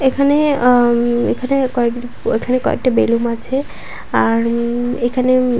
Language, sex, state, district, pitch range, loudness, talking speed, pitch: Bengali, female, West Bengal, Paschim Medinipur, 235-255 Hz, -16 LUFS, 120 wpm, 245 Hz